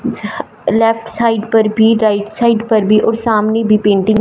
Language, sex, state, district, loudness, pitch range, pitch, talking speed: Hindi, male, Punjab, Fazilka, -13 LUFS, 215-225 Hz, 220 Hz, 185 wpm